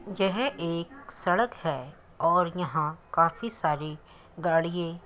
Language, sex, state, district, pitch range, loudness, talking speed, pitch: Hindi, female, Uttar Pradesh, Muzaffarnagar, 165-195 Hz, -28 LUFS, 120 wpm, 170 Hz